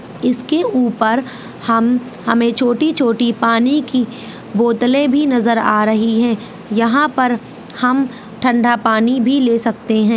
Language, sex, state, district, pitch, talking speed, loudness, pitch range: Hindi, female, Bihar, Saharsa, 235 Hz, 130 wpm, -15 LUFS, 230-250 Hz